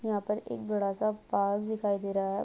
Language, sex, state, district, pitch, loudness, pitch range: Hindi, female, Bihar, Purnia, 205 Hz, -31 LUFS, 200-215 Hz